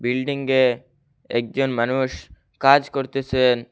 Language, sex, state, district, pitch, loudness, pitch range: Bengali, male, Assam, Hailakandi, 130 Hz, -21 LUFS, 120-135 Hz